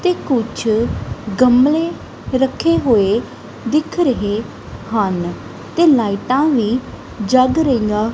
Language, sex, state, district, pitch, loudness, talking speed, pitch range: Punjabi, female, Punjab, Kapurthala, 250 Hz, -16 LUFS, 95 wpm, 215-295 Hz